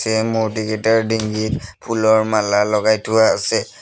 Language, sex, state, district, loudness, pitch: Assamese, male, Assam, Sonitpur, -17 LUFS, 110 Hz